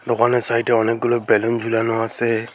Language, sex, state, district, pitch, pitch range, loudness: Bengali, male, West Bengal, Alipurduar, 115 Hz, 115-120 Hz, -19 LUFS